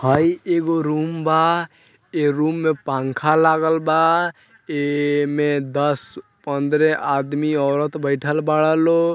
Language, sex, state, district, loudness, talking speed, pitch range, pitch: Bhojpuri, male, Bihar, Muzaffarpur, -19 LUFS, 120 wpm, 145-160 Hz, 155 Hz